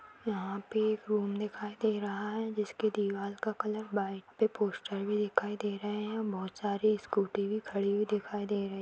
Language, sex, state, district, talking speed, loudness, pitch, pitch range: Kumaoni, female, Uttarakhand, Tehri Garhwal, 205 wpm, -34 LUFS, 210 Hz, 200-215 Hz